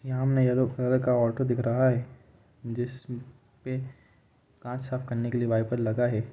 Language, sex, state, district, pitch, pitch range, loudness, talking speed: Hindi, male, Jharkhand, Sahebganj, 125 Hz, 120-130 Hz, -28 LUFS, 170 wpm